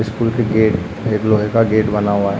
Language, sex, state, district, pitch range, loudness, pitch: Hindi, male, Uttarakhand, Uttarkashi, 105-110 Hz, -16 LUFS, 110 Hz